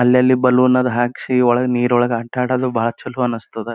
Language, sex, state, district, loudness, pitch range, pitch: Kannada, male, Karnataka, Gulbarga, -17 LUFS, 120-125 Hz, 125 Hz